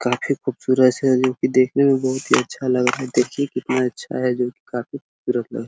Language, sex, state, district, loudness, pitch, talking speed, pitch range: Hindi, male, Bihar, Araria, -20 LUFS, 130 Hz, 265 wpm, 125-130 Hz